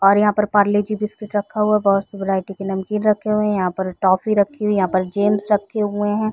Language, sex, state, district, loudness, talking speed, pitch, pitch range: Hindi, female, Chhattisgarh, Raigarh, -19 LUFS, 265 wpm, 205 Hz, 195-210 Hz